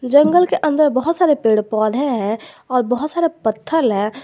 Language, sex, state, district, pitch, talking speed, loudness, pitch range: Hindi, male, Jharkhand, Garhwa, 260 Hz, 185 wpm, -17 LUFS, 220-305 Hz